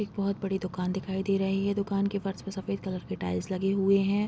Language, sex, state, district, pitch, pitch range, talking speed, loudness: Hindi, female, Bihar, Vaishali, 195 Hz, 190-200 Hz, 265 wpm, -30 LUFS